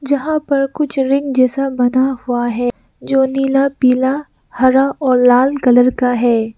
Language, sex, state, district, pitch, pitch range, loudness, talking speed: Hindi, female, Arunachal Pradesh, Lower Dibang Valley, 265 Hz, 250-275 Hz, -14 LUFS, 155 wpm